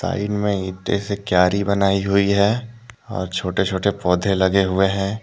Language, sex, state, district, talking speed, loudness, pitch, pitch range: Hindi, male, Jharkhand, Deoghar, 160 wpm, -20 LUFS, 100 Hz, 95-100 Hz